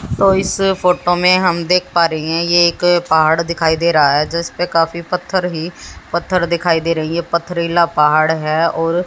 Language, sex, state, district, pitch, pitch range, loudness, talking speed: Hindi, female, Haryana, Jhajjar, 170 Hz, 165-180 Hz, -15 LUFS, 200 wpm